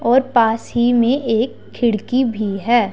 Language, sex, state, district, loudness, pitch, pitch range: Hindi, female, Punjab, Pathankot, -17 LUFS, 235 Hz, 225-245 Hz